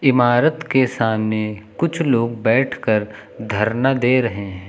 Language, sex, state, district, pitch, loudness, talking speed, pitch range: Hindi, male, Uttar Pradesh, Lucknow, 115 Hz, -19 LUFS, 130 wpm, 110-130 Hz